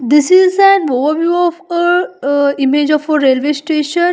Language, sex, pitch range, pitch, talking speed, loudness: English, female, 285-350 Hz, 305 Hz, 145 wpm, -12 LUFS